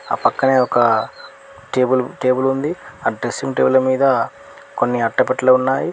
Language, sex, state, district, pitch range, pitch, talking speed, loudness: Telugu, male, Telangana, Mahabubabad, 120-135 Hz, 130 Hz, 130 wpm, -17 LUFS